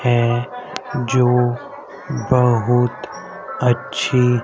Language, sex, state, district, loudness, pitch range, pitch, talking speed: Hindi, male, Haryana, Rohtak, -18 LUFS, 120-125 Hz, 125 Hz, 55 wpm